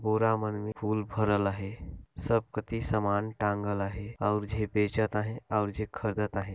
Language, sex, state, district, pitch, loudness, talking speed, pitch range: Hindi, male, Chhattisgarh, Sarguja, 105 Hz, -31 LUFS, 175 wpm, 100-110 Hz